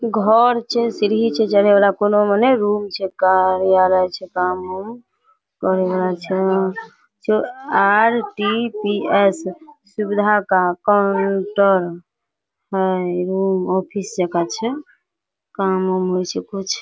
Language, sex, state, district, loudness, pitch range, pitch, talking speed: Maithili, female, Bihar, Supaul, -18 LUFS, 185-215 Hz, 200 Hz, 120 wpm